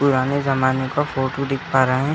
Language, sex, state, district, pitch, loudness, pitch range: Hindi, male, Uttar Pradesh, Etah, 135 Hz, -20 LUFS, 130-140 Hz